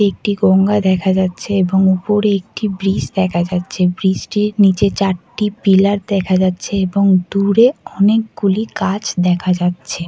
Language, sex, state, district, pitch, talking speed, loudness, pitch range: Bengali, female, West Bengal, Kolkata, 195 Hz, 145 wpm, -15 LUFS, 185-205 Hz